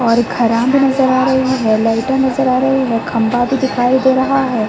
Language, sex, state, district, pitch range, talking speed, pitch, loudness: Hindi, female, Uttar Pradesh, Deoria, 235-265 Hz, 205 wpm, 260 Hz, -14 LUFS